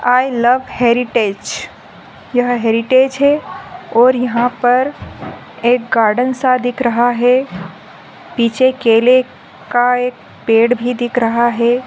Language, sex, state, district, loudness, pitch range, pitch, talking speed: Hindi, female, Andhra Pradesh, Chittoor, -14 LUFS, 235-255 Hz, 245 Hz, 125 wpm